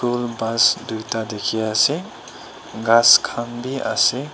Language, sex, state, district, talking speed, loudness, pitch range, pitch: Nagamese, female, Nagaland, Dimapur, 125 wpm, -18 LUFS, 110-125 Hz, 115 Hz